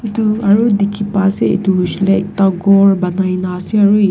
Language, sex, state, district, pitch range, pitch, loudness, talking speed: Nagamese, female, Nagaland, Kohima, 190-205 Hz, 195 Hz, -13 LUFS, 190 wpm